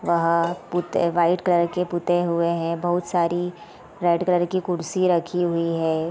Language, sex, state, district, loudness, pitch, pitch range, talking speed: Hindi, female, Bihar, Sitamarhi, -22 LUFS, 175 Hz, 170-175 Hz, 165 wpm